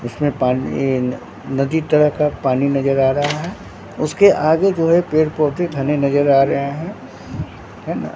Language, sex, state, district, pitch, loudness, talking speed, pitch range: Hindi, male, Bihar, Katihar, 145 Hz, -17 LUFS, 170 wpm, 135-155 Hz